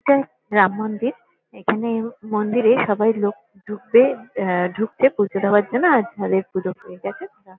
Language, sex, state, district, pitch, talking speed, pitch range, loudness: Bengali, female, West Bengal, Kolkata, 215 Hz, 150 wpm, 200-240 Hz, -20 LUFS